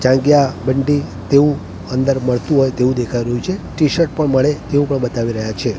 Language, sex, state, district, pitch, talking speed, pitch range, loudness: Gujarati, male, Gujarat, Gandhinagar, 130 Hz, 185 wpm, 120-145 Hz, -16 LUFS